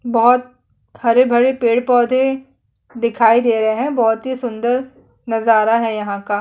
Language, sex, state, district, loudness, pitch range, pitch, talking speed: Hindi, female, Chhattisgarh, Kabirdham, -16 LUFS, 225-250 Hz, 235 Hz, 180 wpm